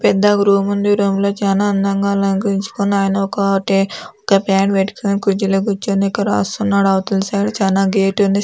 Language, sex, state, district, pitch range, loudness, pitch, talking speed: Telugu, female, Andhra Pradesh, Anantapur, 195-200 Hz, -16 LUFS, 200 Hz, 165 wpm